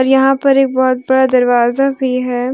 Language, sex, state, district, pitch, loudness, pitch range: Hindi, female, Jharkhand, Deoghar, 260 Hz, -13 LUFS, 250-270 Hz